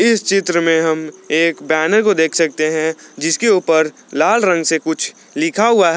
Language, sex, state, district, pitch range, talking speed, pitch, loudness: Hindi, male, Jharkhand, Garhwa, 160-195 Hz, 190 wpm, 165 Hz, -15 LUFS